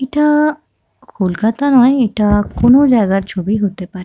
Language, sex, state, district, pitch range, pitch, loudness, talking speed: Bengali, female, West Bengal, Kolkata, 195-270 Hz, 220 Hz, -13 LUFS, 135 wpm